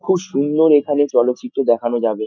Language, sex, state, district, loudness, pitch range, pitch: Bengali, male, West Bengal, Dakshin Dinajpur, -17 LUFS, 120-145 Hz, 135 Hz